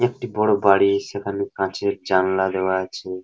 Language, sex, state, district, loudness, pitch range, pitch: Bengali, male, West Bengal, Paschim Medinipur, -21 LUFS, 95-100 Hz, 100 Hz